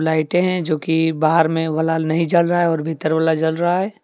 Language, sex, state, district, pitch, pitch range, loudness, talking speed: Hindi, male, Jharkhand, Deoghar, 160 Hz, 160-175 Hz, -18 LUFS, 235 wpm